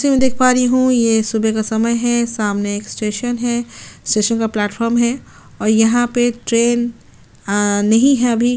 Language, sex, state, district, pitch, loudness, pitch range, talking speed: Hindi, female, Chhattisgarh, Sukma, 230 Hz, -16 LUFS, 220-240 Hz, 195 wpm